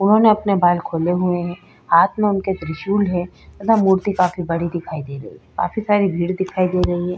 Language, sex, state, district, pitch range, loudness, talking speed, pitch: Hindi, female, Uttar Pradesh, Jalaun, 175-200 Hz, -19 LUFS, 215 wpm, 180 Hz